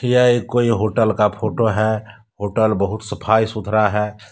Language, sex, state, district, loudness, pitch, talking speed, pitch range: Hindi, male, Jharkhand, Deoghar, -18 LUFS, 110 Hz, 165 wpm, 105-115 Hz